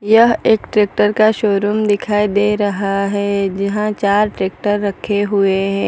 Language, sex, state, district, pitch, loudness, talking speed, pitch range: Hindi, female, Gujarat, Valsad, 205 Hz, -15 LUFS, 155 wpm, 200-210 Hz